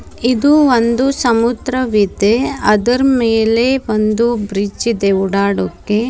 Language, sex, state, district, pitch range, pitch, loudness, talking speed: Kannada, female, Karnataka, Bidar, 210-250 Hz, 230 Hz, -14 LUFS, 90 wpm